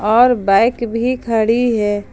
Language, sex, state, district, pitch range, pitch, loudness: Hindi, female, Jharkhand, Ranchi, 215-240 Hz, 230 Hz, -15 LUFS